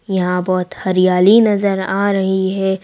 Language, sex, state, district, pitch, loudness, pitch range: Hindi, female, Madhya Pradesh, Bhopal, 190 Hz, -15 LUFS, 185-200 Hz